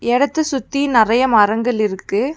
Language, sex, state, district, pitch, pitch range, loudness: Tamil, female, Tamil Nadu, Nilgiris, 245 Hz, 220-280 Hz, -16 LUFS